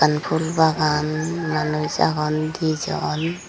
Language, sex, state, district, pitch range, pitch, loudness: Chakma, female, Tripura, Dhalai, 150-160 Hz, 155 Hz, -21 LUFS